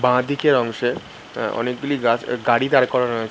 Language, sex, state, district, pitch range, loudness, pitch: Bengali, male, West Bengal, Malda, 120-135 Hz, -20 LUFS, 125 Hz